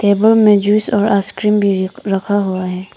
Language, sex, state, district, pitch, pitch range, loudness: Hindi, female, Arunachal Pradesh, Papum Pare, 205 Hz, 195-210 Hz, -14 LUFS